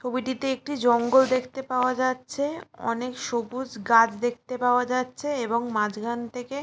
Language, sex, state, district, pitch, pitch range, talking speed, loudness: Bengali, female, West Bengal, Jalpaiguri, 250 Hz, 235-260 Hz, 145 wpm, -25 LUFS